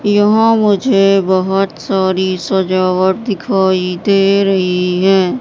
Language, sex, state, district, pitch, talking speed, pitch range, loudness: Hindi, female, Madhya Pradesh, Katni, 190 Hz, 100 wpm, 185-200 Hz, -13 LUFS